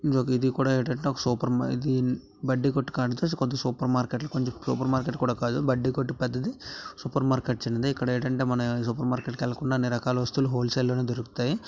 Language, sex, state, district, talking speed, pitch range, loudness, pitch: Telugu, male, Andhra Pradesh, Visakhapatnam, 180 wpm, 125-130 Hz, -27 LUFS, 125 Hz